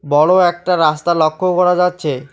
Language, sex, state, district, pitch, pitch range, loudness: Bengali, male, West Bengal, Alipurduar, 175 Hz, 150-180 Hz, -14 LUFS